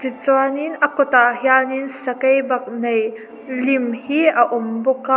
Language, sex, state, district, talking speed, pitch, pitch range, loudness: Mizo, female, Mizoram, Aizawl, 140 wpm, 260 Hz, 240-270 Hz, -18 LUFS